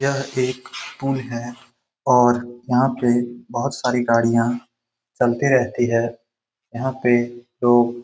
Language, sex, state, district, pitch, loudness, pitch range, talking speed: Hindi, male, Bihar, Lakhisarai, 120 Hz, -20 LUFS, 120-125 Hz, 125 wpm